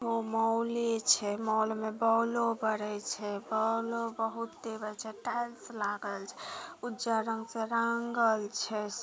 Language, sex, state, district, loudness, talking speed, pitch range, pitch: Maithili, female, Bihar, Samastipur, -32 LUFS, 120 wpm, 215-230 Hz, 225 Hz